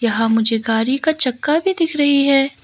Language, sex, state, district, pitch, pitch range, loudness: Hindi, female, Arunachal Pradesh, Lower Dibang Valley, 275 Hz, 225-300 Hz, -16 LUFS